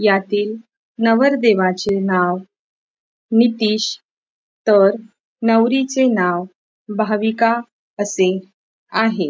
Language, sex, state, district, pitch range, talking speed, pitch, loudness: Marathi, female, Maharashtra, Pune, 195-230 Hz, 65 wpm, 215 Hz, -17 LUFS